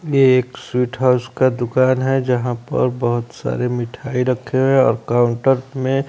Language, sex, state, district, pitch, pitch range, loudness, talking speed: Hindi, male, Bihar, Kaimur, 125 Hz, 120-130 Hz, -18 LUFS, 165 wpm